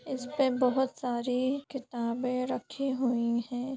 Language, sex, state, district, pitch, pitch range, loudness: Hindi, female, Bihar, Sitamarhi, 255 Hz, 245-265 Hz, -31 LUFS